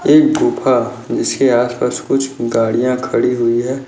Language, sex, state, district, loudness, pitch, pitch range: Hindi, male, Maharashtra, Nagpur, -15 LUFS, 125 Hz, 120-135 Hz